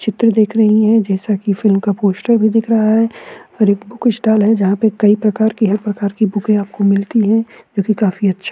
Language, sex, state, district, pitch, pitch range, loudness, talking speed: Hindi, male, Uttarakhand, Tehri Garhwal, 215 Hz, 200-220 Hz, -14 LUFS, 245 wpm